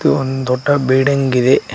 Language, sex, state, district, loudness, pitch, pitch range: Kannada, male, Karnataka, Koppal, -15 LUFS, 130 Hz, 130-140 Hz